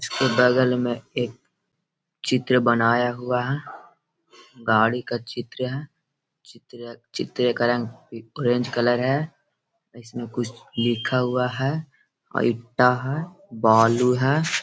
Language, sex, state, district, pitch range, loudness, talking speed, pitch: Hindi, male, Bihar, Gaya, 120-130 Hz, -23 LUFS, 125 wpm, 125 Hz